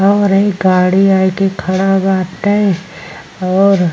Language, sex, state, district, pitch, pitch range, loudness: Bhojpuri, female, Uttar Pradesh, Ghazipur, 190 Hz, 185-195 Hz, -13 LUFS